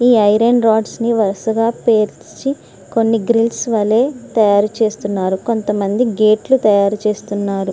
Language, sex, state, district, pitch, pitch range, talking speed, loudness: Telugu, female, Andhra Pradesh, Srikakulam, 220 Hz, 205-235 Hz, 125 wpm, -15 LUFS